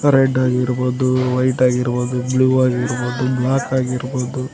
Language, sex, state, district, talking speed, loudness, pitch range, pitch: Kannada, male, Karnataka, Koppal, 105 wpm, -18 LUFS, 125-130 Hz, 130 Hz